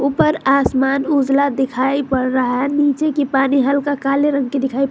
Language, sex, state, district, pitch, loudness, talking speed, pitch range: Hindi, female, Jharkhand, Garhwa, 275 Hz, -17 LUFS, 195 wpm, 265-285 Hz